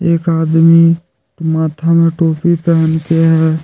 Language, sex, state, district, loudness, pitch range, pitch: Hindi, male, Jharkhand, Deoghar, -12 LUFS, 160-165 Hz, 165 Hz